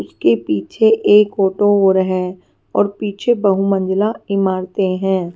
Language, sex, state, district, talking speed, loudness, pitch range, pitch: Hindi, female, Himachal Pradesh, Shimla, 125 wpm, -16 LUFS, 185-205 Hz, 195 Hz